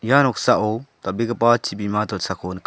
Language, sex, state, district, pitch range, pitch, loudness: Garo, male, Meghalaya, South Garo Hills, 95-120 Hz, 110 Hz, -21 LUFS